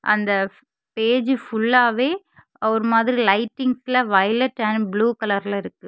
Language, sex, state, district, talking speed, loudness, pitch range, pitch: Tamil, female, Tamil Nadu, Kanyakumari, 110 wpm, -20 LUFS, 210-250 Hz, 225 Hz